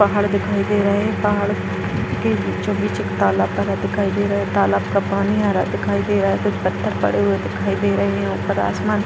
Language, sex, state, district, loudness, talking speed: Hindi, female, Bihar, Jahanabad, -19 LUFS, 220 wpm